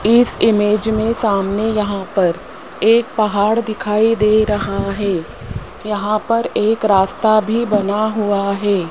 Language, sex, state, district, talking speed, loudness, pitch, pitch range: Hindi, male, Rajasthan, Jaipur, 135 wpm, -16 LUFS, 210 Hz, 200-220 Hz